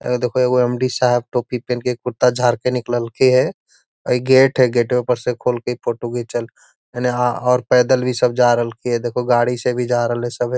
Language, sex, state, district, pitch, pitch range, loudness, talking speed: Magahi, male, Bihar, Gaya, 125 Hz, 120-125 Hz, -18 LUFS, 250 wpm